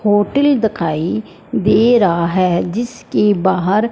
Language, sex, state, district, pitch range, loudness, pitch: Hindi, male, Punjab, Fazilka, 180-225 Hz, -15 LUFS, 205 Hz